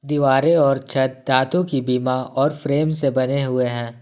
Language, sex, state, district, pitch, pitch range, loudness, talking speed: Hindi, male, Jharkhand, Ranchi, 135 Hz, 130-145 Hz, -19 LUFS, 180 wpm